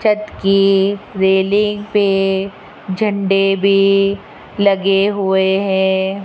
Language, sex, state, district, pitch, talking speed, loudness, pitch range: Hindi, female, Rajasthan, Jaipur, 195 Hz, 85 wpm, -15 LUFS, 195-200 Hz